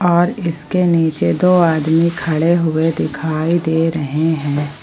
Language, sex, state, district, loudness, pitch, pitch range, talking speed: Hindi, female, Jharkhand, Palamu, -16 LUFS, 160 Hz, 155-170 Hz, 135 wpm